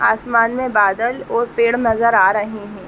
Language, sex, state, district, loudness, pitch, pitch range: Hindi, female, Uttar Pradesh, Etah, -16 LUFS, 230 Hz, 210-235 Hz